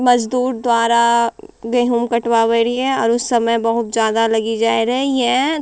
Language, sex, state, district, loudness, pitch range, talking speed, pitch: Angika, female, Bihar, Bhagalpur, -16 LUFS, 230-245 Hz, 150 wpm, 235 Hz